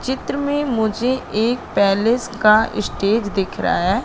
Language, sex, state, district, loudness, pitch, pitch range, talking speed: Hindi, female, Madhya Pradesh, Katni, -18 LUFS, 225 Hz, 210-250 Hz, 150 wpm